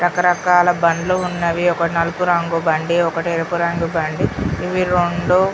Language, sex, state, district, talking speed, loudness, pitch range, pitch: Telugu, female, Telangana, Karimnagar, 150 wpm, -18 LUFS, 170-180 Hz, 175 Hz